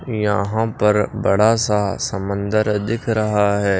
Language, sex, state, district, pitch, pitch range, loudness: Hindi, male, Maharashtra, Washim, 105 Hz, 100-110 Hz, -18 LUFS